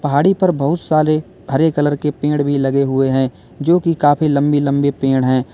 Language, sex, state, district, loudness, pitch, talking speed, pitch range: Hindi, male, Uttar Pradesh, Lalitpur, -16 LUFS, 145 Hz, 205 wpm, 135-155 Hz